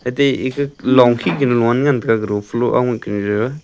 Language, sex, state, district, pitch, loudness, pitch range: Wancho, male, Arunachal Pradesh, Longding, 120 Hz, -16 LUFS, 115-130 Hz